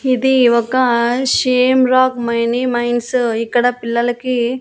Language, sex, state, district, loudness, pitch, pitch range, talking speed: Telugu, female, Andhra Pradesh, Annamaya, -15 LUFS, 245 Hz, 235-255 Hz, 105 wpm